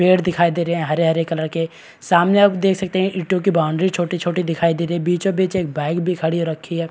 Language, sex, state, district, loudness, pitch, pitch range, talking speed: Hindi, male, Bihar, Araria, -19 LUFS, 170 Hz, 165-185 Hz, 245 wpm